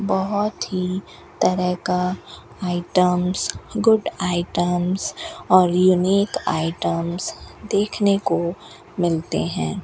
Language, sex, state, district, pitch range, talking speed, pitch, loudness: Hindi, female, Rajasthan, Bikaner, 175-200 Hz, 85 wpm, 185 Hz, -21 LUFS